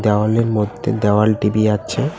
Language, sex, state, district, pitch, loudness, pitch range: Bengali, male, West Bengal, Cooch Behar, 110 Hz, -17 LUFS, 105-115 Hz